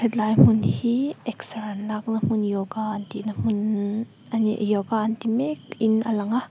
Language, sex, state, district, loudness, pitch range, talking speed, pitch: Mizo, female, Mizoram, Aizawl, -24 LUFS, 210-225 Hz, 195 wpm, 215 Hz